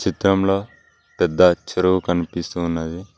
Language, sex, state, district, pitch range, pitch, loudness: Telugu, male, Telangana, Mahabubabad, 85-95 Hz, 90 Hz, -20 LUFS